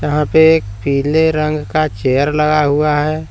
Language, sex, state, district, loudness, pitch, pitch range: Hindi, male, Jharkhand, Palamu, -14 LUFS, 150 Hz, 145-155 Hz